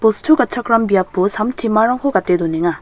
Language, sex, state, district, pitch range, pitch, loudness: Garo, female, Meghalaya, West Garo Hills, 185-240 Hz, 220 Hz, -15 LUFS